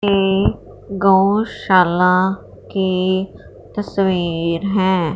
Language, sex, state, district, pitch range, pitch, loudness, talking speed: Hindi, female, Punjab, Fazilka, 180-195 Hz, 190 Hz, -17 LUFS, 60 wpm